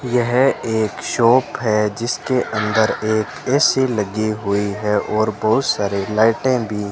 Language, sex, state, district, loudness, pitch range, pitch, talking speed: Hindi, male, Rajasthan, Bikaner, -18 LUFS, 105-120 Hz, 110 Hz, 140 wpm